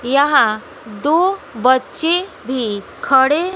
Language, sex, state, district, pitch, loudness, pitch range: Hindi, female, Bihar, West Champaran, 270 Hz, -16 LUFS, 245-320 Hz